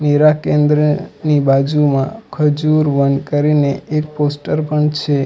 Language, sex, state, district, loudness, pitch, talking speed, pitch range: Gujarati, male, Gujarat, Valsad, -15 LUFS, 150 Hz, 115 wpm, 145-150 Hz